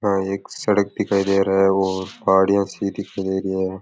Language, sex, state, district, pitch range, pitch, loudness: Rajasthani, male, Rajasthan, Nagaur, 95-100 Hz, 95 Hz, -20 LUFS